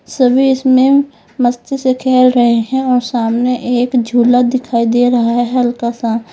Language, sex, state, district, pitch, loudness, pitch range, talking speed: Hindi, female, Uttar Pradesh, Lalitpur, 245 Hz, -13 LUFS, 240-255 Hz, 160 wpm